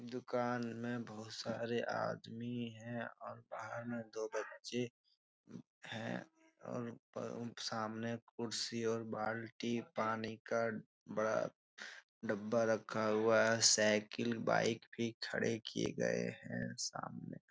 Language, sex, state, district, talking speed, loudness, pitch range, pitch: Hindi, male, Bihar, Jahanabad, 115 wpm, -39 LUFS, 110-120 Hz, 115 Hz